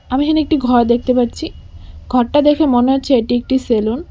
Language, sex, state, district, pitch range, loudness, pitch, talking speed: Bengali, female, West Bengal, Cooch Behar, 235-275 Hz, -15 LUFS, 250 Hz, 205 wpm